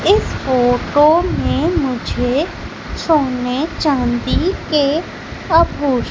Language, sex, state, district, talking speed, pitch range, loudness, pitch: Hindi, female, Madhya Pradesh, Umaria, 80 wpm, 250-320 Hz, -16 LUFS, 290 Hz